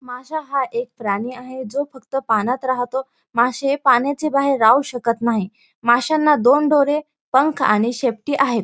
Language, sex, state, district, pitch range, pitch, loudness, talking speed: Marathi, female, Maharashtra, Dhule, 240-280 Hz, 255 Hz, -19 LUFS, 155 wpm